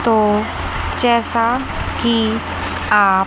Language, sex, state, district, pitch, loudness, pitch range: Hindi, female, Chandigarh, Chandigarh, 225 Hz, -17 LUFS, 210-235 Hz